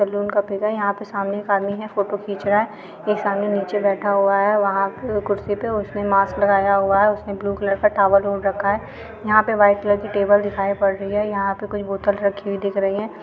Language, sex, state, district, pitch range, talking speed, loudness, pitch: Hindi, female, Maharashtra, Chandrapur, 200-205 Hz, 250 wpm, -20 LUFS, 200 Hz